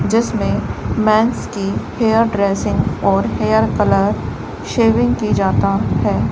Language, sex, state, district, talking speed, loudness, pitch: Hindi, male, Rajasthan, Bikaner, 115 wpm, -16 LUFS, 200 Hz